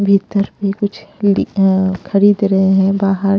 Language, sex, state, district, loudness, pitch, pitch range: Hindi, female, Punjab, Pathankot, -15 LUFS, 195 Hz, 195-200 Hz